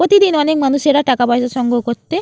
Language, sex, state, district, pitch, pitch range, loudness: Bengali, female, West Bengal, Jalpaiguri, 275 Hz, 245-310 Hz, -14 LUFS